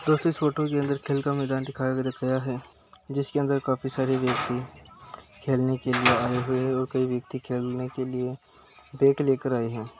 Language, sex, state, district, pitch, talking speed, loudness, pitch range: Hindi, male, Uttar Pradesh, Muzaffarnagar, 130 Hz, 185 wpm, -26 LUFS, 125-140 Hz